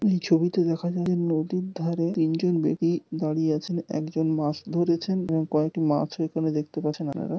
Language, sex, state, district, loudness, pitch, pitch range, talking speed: Bengali, male, West Bengal, North 24 Parganas, -26 LUFS, 165 Hz, 155-175 Hz, 170 wpm